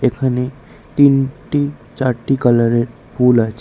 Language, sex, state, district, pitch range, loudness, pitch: Bengali, male, Tripura, West Tripura, 120-135 Hz, -16 LUFS, 130 Hz